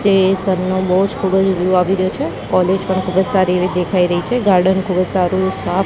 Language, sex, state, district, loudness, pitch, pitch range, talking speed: Gujarati, female, Gujarat, Gandhinagar, -16 LUFS, 185 Hz, 180-190 Hz, 215 wpm